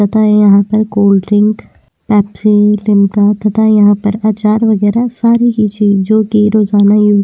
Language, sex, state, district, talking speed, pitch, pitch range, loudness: Hindi, female, Uttarakhand, Tehri Garhwal, 155 wpm, 210 Hz, 205-215 Hz, -10 LUFS